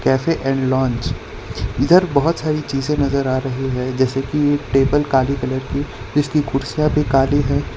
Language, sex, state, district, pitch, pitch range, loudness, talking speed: Hindi, male, Gujarat, Valsad, 135 Hz, 130-145 Hz, -18 LUFS, 170 wpm